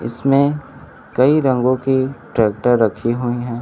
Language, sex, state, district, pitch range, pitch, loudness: Hindi, male, Bihar, Kaimur, 115-135 Hz, 120 Hz, -17 LUFS